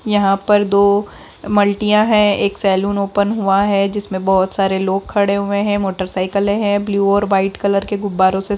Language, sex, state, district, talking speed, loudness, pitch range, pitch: Hindi, female, Bihar, Darbhanga, 180 wpm, -16 LUFS, 195-205 Hz, 200 Hz